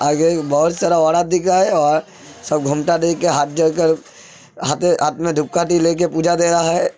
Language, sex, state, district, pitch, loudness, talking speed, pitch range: Hindi, male, Uttar Pradesh, Hamirpur, 165 Hz, -16 LUFS, 165 wpm, 155-175 Hz